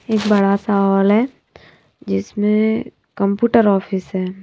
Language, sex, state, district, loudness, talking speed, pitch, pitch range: Hindi, female, Bihar, Katihar, -17 LUFS, 120 wpm, 200 Hz, 195-215 Hz